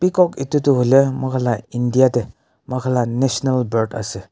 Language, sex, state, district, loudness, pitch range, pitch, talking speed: Nagamese, male, Nagaland, Kohima, -18 LUFS, 120-135 Hz, 130 Hz, 180 wpm